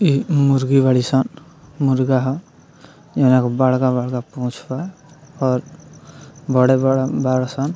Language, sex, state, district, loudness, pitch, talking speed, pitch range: Bhojpuri, male, Bihar, Muzaffarpur, -18 LUFS, 135 Hz, 115 wpm, 130-150 Hz